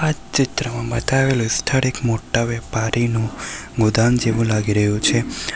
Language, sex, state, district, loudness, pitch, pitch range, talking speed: Gujarati, male, Gujarat, Valsad, -19 LUFS, 115 Hz, 110-130 Hz, 130 wpm